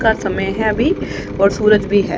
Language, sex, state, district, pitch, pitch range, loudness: Hindi, female, Haryana, Jhajjar, 200 Hz, 195-215 Hz, -16 LUFS